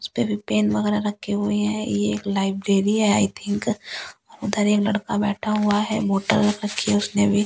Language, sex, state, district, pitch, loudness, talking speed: Hindi, female, Delhi, New Delhi, 205 Hz, -22 LUFS, 195 wpm